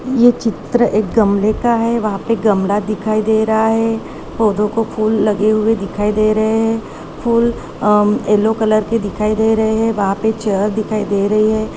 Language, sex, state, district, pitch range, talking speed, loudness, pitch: Hindi, female, Chhattisgarh, Balrampur, 210-225 Hz, 195 wpm, -15 LUFS, 215 Hz